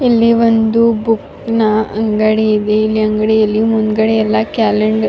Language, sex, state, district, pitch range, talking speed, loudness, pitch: Kannada, female, Karnataka, Raichur, 215-225 Hz, 130 wpm, -13 LUFS, 220 Hz